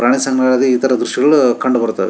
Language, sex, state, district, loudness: Kannada, male, Karnataka, Shimoga, -14 LUFS